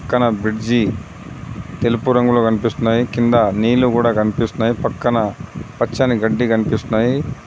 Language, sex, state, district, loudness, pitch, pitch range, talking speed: Telugu, male, Telangana, Adilabad, -17 LUFS, 120 Hz, 110-120 Hz, 105 wpm